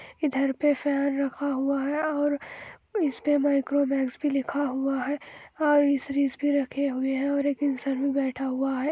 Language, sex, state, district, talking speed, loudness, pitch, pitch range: Hindi, female, Andhra Pradesh, Anantapur, 170 wpm, -26 LUFS, 280 Hz, 270-290 Hz